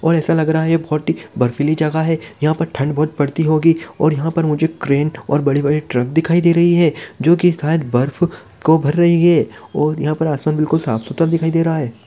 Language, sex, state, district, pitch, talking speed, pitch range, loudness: Hindi, male, Rajasthan, Nagaur, 155 Hz, 230 wpm, 150-165 Hz, -16 LUFS